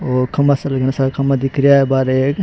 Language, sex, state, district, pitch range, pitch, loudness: Rajasthani, male, Rajasthan, Churu, 130-140 Hz, 135 Hz, -15 LUFS